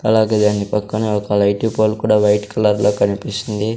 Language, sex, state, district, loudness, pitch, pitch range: Telugu, male, Andhra Pradesh, Sri Satya Sai, -17 LUFS, 105 Hz, 105-110 Hz